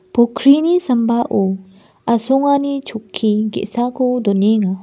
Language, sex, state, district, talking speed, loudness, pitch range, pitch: Garo, female, Meghalaya, West Garo Hills, 75 wpm, -16 LUFS, 205-255 Hz, 235 Hz